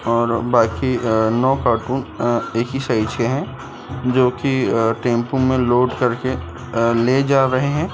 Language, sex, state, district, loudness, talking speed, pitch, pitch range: Hindi, male, Madhya Pradesh, Dhar, -18 LUFS, 175 wpm, 125 Hz, 115-130 Hz